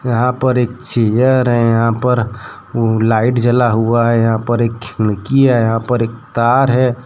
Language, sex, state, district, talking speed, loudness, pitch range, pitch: Hindi, male, Jharkhand, Deoghar, 180 wpm, -14 LUFS, 115-125 Hz, 120 Hz